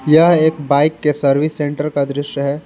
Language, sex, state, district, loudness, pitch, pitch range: Hindi, male, Jharkhand, Ranchi, -15 LUFS, 145 Hz, 140-155 Hz